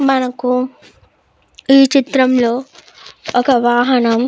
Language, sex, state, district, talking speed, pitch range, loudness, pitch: Telugu, female, Andhra Pradesh, Krishna, 85 wpm, 245-270 Hz, -14 LUFS, 255 Hz